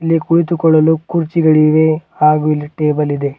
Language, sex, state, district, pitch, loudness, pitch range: Kannada, male, Karnataka, Bidar, 155 Hz, -13 LUFS, 150-165 Hz